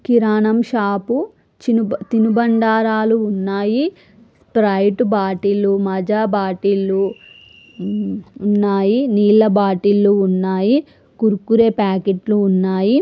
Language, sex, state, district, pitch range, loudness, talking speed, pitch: Telugu, female, Andhra Pradesh, Srikakulam, 195-225 Hz, -16 LUFS, 90 wpm, 205 Hz